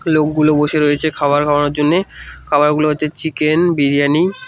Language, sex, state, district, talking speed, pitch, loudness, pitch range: Bengali, male, West Bengal, Cooch Behar, 145 wpm, 150 Hz, -14 LUFS, 145-155 Hz